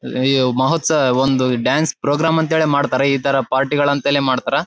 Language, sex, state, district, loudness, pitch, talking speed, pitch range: Kannada, male, Karnataka, Bellary, -16 LUFS, 140 Hz, 155 wpm, 130-155 Hz